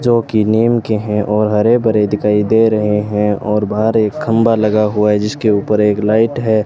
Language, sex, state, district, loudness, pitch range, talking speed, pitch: Hindi, male, Rajasthan, Bikaner, -14 LUFS, 105-115 Hz, 215 wpm, 105 Hz